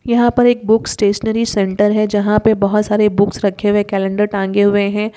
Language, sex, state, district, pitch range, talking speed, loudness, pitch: Hindi, female, Uttar Pradesh, Ghazipur, 205-220 Hz, 220 wpm, -15 LUFS, 210 Hz